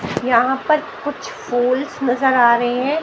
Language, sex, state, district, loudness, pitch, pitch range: Hindi, female, Haryana, Jhajjar, -17 LUFS, 260 Hz, 245-290 Hz